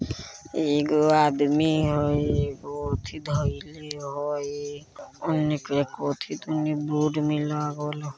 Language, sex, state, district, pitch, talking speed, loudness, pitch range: Bajjika, male, Bihar, Vaishali, 150 Hz, 75 wpm, -26 LUFS, 145-150 Hz